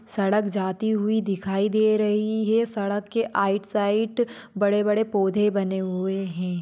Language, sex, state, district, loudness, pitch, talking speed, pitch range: Hindi, female, Maharashtra, Sindhudurg, -24 LUFS, 205 Hz, 155 wpm, 195-215 Hz